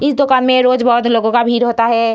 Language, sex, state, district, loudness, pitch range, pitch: Hindi, female, Bihar, Samastipur, -13 LUFS, 235-255 Hz, 240 Hz